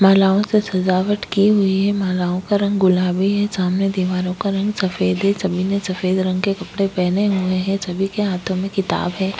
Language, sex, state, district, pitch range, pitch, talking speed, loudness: Hindi, female, Maharashtra, Aurangabad, 185-200 Hz, 190 Hz, 205 wpm, -19 LUFS